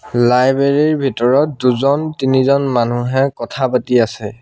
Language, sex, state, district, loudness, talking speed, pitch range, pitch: Assamese, male, Assam, Sonitpur, -15 LUFS, 120 wpm, 120-140 Hz, 130 Hz